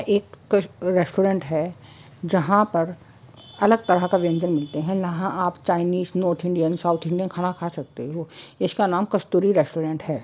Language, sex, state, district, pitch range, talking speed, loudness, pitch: Hindi, male, West Bengal, Kolkata, 160-190 Hz, 165 wpm, -23 LUFS, 175 Hz